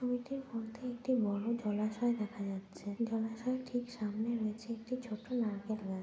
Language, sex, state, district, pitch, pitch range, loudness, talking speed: Bengali, female, West Bengal, Jhargram, 225 Hz, 210-245 Hz, -38 LUFS, 150 wpm